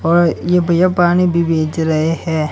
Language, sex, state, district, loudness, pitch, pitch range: Hindi, male, Gujarat, Gandhinagar, -15 LUFS, 170 Hz, 160-175 Hz